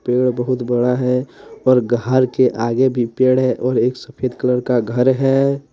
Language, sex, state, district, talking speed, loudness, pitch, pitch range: Hindi, male, Jharkhand, Deoghar, 190 wpm, -17 LUFS, 125 Hz, 125-130 Hz